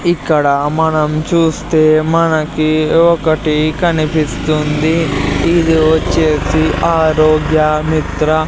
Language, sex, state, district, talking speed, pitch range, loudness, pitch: Telugu, male, Andhra Pradesh, Sri Satya Sai, 70 wpm, 155-160 Hz, -13 LUFS, 155 Hz